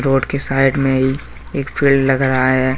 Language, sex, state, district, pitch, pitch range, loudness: Hindi, male, Jharkhand, Deoghar, 135 Hz, 130-135 Hz, -16 LUFS